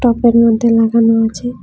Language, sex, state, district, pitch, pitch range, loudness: Bengali, female, Tripura, West Tripura, 230 Hz, 225-235 Hz, -12 LUFS